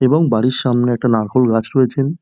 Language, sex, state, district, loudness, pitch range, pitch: Bengali, male, West Bengal, Dakshin Dinajpur, -15 LUFS, 120-130 Hz, 125 Hz